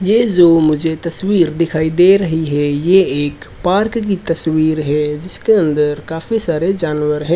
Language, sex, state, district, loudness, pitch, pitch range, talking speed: Hindi, male, Rajasthan, Bikaner, -14 LUFS, 165 Hz, 150-185 Hz, 165 wpm